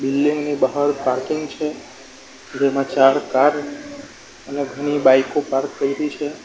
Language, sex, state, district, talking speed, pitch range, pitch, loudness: Gujarati, male, Gujarat, Valsad, 140 wpm, 135-150 Hz, 145 Hz, -19 LUFS